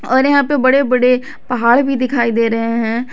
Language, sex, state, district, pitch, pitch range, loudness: Hindi, female, Jharkhand, Garhwa, 250 Hz, 235-265 Hz, -14 LUFS